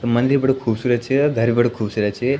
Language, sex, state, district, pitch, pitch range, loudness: Garhwali, male, Uttarakhand, Tehri Garhwal, 120 Hz, 115-135 Hz, -19 LUFS